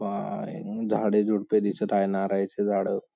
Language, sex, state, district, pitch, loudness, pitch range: Marathi, male, Maharashtra, Sindhudurg, 100 Hz, -26 LUFS, 100-105 Hz